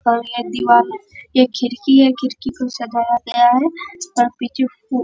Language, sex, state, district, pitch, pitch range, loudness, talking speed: Hindi, male, Bihar, Bhagalpur, 250 Hz, 240-270 Hz, -17 LUFS, 155 wpm